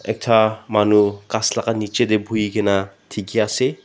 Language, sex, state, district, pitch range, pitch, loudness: Nagamese, male, Nagaland, Dimapur, 105-110 Hz, 110 Hz, -19 LUFS